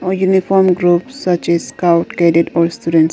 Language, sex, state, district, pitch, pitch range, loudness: English, female, Arunachal Pradesh, Lower Dibang Valley, 170 Hz, 170-185 Hz, -14 LUFS